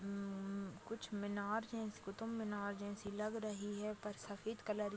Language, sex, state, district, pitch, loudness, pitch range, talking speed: Hindi, female, Uttar Pradesh, Deoria, 205 Hz, -45 LUFS, 200-215 Hz, 170 wpm